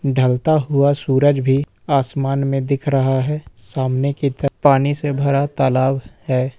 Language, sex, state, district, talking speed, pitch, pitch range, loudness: Hindi, male, Jharkhand, Ranchi, 155 wpm, 140 Hz, 135-140 Hz, -18 LUFS